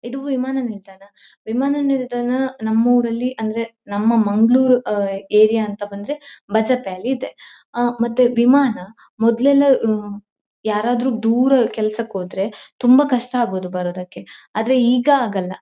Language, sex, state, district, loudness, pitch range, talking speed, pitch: Kannada, female, Karnataka, Dakshina Kannada, -18 LUFS, 205-255 Hz, 120 wpm, 230 Hz